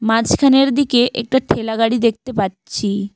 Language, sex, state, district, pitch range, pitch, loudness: Bengali, female, West Bengal, Alipurduar, 210-260 Hz, 230 Hz, -16 LUFS